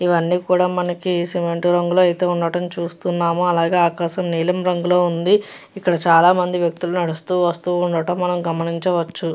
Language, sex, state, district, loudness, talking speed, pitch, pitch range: Telugu, female, Andhra Pradesh, Chittoor, -19 LUFS, 120 wpm, 175 Hz, 170-180 Hz